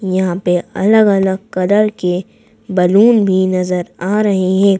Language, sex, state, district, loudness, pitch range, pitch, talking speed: Hindi, female, Madhya Pradesh, Bhopal, -14 LUFS, 180-205 Hz, 190 Hz, 140 wpm